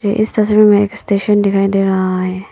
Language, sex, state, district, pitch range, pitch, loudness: Hindi, female, Arunachal Pradesh, Papum Pare, 195-210 Hz, 200 Hz, -13 LUFS